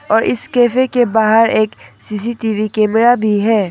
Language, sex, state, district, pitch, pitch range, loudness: Hindi, female, Arunachal Pradesh, Papum Pare, 225 Hz, 215-240 Hz, -14 LUFS